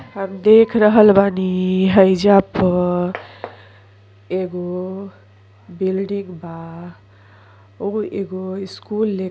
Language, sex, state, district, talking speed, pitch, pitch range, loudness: Bhojpuri, female, Uttar Pradesh, Ghazipur, 85 wpm, 185 Hz, 165-195 Hz, -17 LUFS